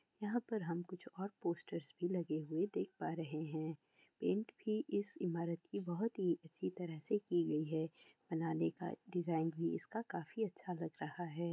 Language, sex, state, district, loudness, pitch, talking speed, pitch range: Hindi, female, Bihar, Kishanganj, -42 LUFS, 175 Hz, 180 wpm, 165-200 Hz